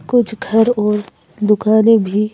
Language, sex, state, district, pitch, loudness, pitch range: Hindi, female, Madhya Pradesh, Bhopal, 215 Hz, -14 LUFS, 210-225 Hz